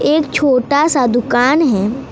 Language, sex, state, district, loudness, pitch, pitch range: Hindi, female, West Bengal, Alipurduar, -13 LUFS, 265 Hz, 245-295 Hz